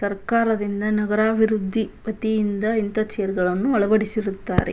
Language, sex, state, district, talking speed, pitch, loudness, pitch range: Kannada, female, Karnataka, Bijapur, 90 wpm, 215 Hz, -22 LUFS, 205-220 Hz